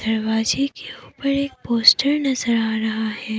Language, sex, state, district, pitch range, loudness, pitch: Hindi, female, Assam, Kamrup Metropolitan, 220-275 Hz, -19 LUFS, 230 Hz